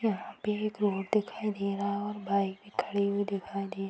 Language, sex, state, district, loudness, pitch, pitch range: Hindi, female, Bihar, East Champaran, -32 LUFS, 200 Hz, 200-210 Hz